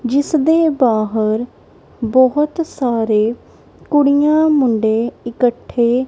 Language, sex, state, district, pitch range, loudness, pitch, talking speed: Punjabi, female, Punjab, Kapurthala, 230-290 Hz, -15 LUFS, 250 Hz, 80 wpm